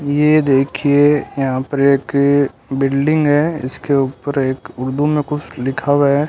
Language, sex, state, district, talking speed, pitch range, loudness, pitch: Hindi, male, Rajasthan, Bikaner, 150 wpm, 135-145 Hz, -16 LUFS, 140 Hz